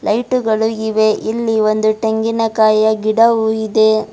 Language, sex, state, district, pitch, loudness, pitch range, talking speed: Kannada, female, Karnataka, Bidar, 220 Hz, -15 LUFS, 215-225 Hz, 115 wpm